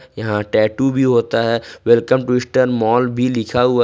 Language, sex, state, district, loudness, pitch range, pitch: Hindi, male, Jharkhand, Ranchi, -16 LUFS, 115-125 Hz, 120 Hz